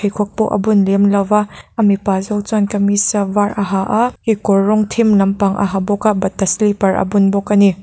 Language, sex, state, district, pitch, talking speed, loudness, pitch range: Mizo, female, Mizoram, Aizawl, 205 Hz, 235 wpm, -15 LUFS, 195-210 Hz